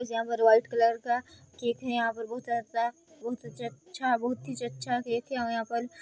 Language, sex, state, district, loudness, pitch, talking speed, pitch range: Hindi, female, Chhattisgarh, Balrampur, -30 LUFS, 235 Hz, 230 wpm, 230-245 Hz